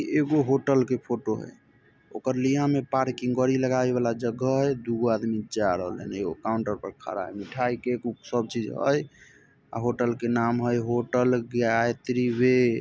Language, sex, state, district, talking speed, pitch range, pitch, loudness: Maithili, male, Bihar, Samastipur, 175 wpm, 115-130 Hz, 125 Hz, -26 LUFS